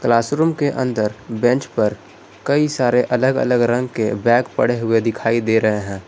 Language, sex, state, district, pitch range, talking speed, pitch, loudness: Hindi, male, Jharkhand, Garhwa, 110-125 Hz, 180 wpm, 120 Hz, -18 LUFS